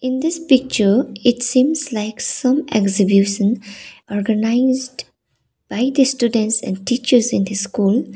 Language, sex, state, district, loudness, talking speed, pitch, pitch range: English, female, Sikkim, Gangtok, -17 LUFS, 125 wpm, 235 Hz, 205-260 Hz